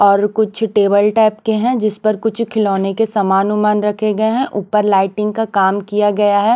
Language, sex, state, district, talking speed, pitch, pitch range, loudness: Hindi, female, Punjab, Pathankot, 210 wpm, 210 Hz, 205-220 Hz, -15 LUFS